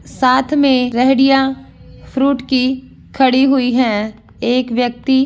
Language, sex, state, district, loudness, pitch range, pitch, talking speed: Hindi, female, Andhra Pradesh, Anantapur, -14 LUFS, 250-270 Hz, 260 Hz, 135 wpm